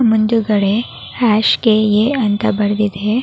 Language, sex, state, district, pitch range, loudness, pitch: Kannada, female, Karnataka, Raichur, 210-230 Hz, -15 LUFS, 215 Hz